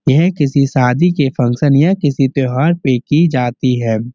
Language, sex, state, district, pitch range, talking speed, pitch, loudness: Hindi, male, Uttar Pradesh, Muzaffarnagar, 125-150 Hz, 190 wpm, 140 Hz, -14 LUFS